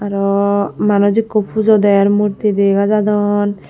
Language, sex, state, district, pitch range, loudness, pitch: Chakma, female, Tripura, Unakoti, 200-210 Hz, -14 LUFS, 205 Hz